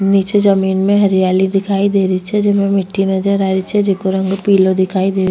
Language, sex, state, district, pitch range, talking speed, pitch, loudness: Rajasthani, female, Rajasthan, Nagaur, 190-200 Hz, 225 wpm, 195 Hz, -14 LUFS